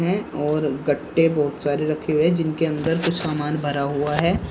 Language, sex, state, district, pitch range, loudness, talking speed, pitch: Hindi, male, Uttar Pradesh, Saharanpur, 145-165 Hz, -22 LUFS, 200 wpm, 155 Hz